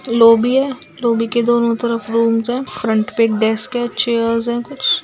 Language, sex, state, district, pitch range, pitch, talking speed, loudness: Hindi, female, Bihar, Sitamarhi, 230-240 Hz, 235 Hz, 200 wpm, -16 LUFS